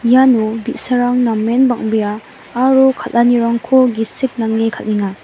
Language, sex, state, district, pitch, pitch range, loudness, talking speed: Garo, female, Meghalaya, West Garo Hills, 235 Hz, 220-250 Hz, -14 LUFS, 105 wpm